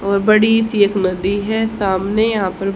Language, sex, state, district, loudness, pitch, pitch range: Hindi, female, Haryana, Jhajjar, -16 LUFS, 205 Hz, 195-220 Hz